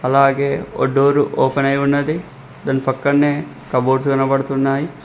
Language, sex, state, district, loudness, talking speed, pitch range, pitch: Telugu, male, Telangana, Mahabubabad, -17 LUFS, 105 wpm, 135-140 Hz, 140 Hz